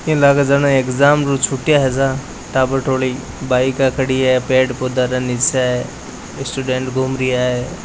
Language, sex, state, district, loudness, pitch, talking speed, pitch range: Hindi, male, Rajasthan, Nagaur, -16 LUFS, 130 Hz, 160 wpm, 130-135 Hz